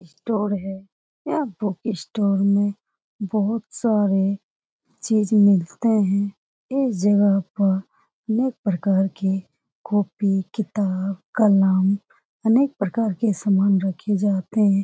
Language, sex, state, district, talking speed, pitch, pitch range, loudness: Hindi, female, Bihar, Lakhisarai, 110 wpm, 200 Hz, 195-215 Hz, -21 LUFS